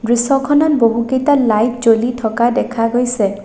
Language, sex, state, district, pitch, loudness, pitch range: Assamese, female, Assam, Sonitpur, 240 Hz, -14 LUFS, 225-260 Hz